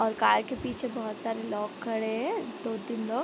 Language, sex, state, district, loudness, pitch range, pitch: Hindi, female, Bihar, Gopalganj, -30 LUFS, 210-230 Hz, 220 Hz